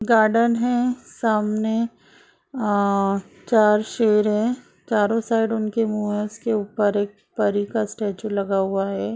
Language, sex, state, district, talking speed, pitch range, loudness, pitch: Hindi, female, Bihar, Sitamarhi, 135 wpm, 205-230 Hz, -22 LUFS, 215 Hz